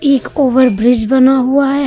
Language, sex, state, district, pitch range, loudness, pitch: Hindi, female, Uttar Pradesh, Lucknow, 255-275 Hz, -11 LUFS, 265 Hz